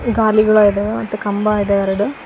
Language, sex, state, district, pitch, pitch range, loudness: Kannada, female, Karnataka, Koppal, 210 Hz, 205-215 Hz, -15 LUFS